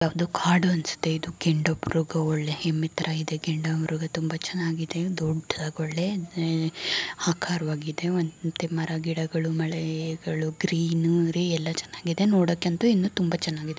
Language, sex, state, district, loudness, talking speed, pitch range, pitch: Kannada, female, Karnataka, Mysore, -26 LUFS, 115 wpm, 160-170 Hz, 165 Hz